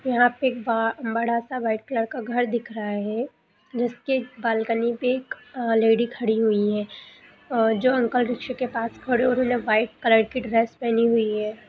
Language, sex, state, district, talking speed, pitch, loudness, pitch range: Hindi, female, Bihar, Jamui, 205 wpm, 235 Hz, -23 LUFS, 225-245 Hz